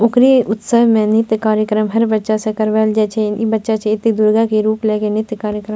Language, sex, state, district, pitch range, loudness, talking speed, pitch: Maithili, female, Bihar, Purnia, 215-225 Hz, -15 LUFS, 250 wpm, 215 Hz